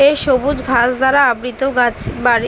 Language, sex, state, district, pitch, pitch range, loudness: Bengali, female, West Bengal, Dakshin Dinajpur, 260 Hz, 245-275 Hz, -15 LUFS